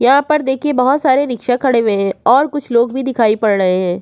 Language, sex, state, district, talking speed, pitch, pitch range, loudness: Hindi, female, Uttar Pradesh, Jyotiba Phule Nagar, 255 wpm, 250 Hz, 220-270 Hz, -14 LUFS